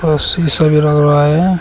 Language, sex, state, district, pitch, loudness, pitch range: Hindi, male, Uttar Pradesh, Shamli, 155 Hz, -11 LUFS, 150-165 Hz